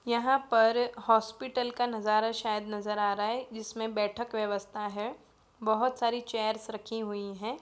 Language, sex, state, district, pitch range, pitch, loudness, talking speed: Hindi, female, Uttar Pradesh, Jyotiba Phule Nagar, 210-235 Hz, 225 Hz, -31 LUFS, 155 wpm